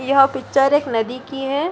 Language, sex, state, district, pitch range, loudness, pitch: Hindi, female, Bihar, Gaya, 260-275 Hz, -18 LUFS, 270 Hz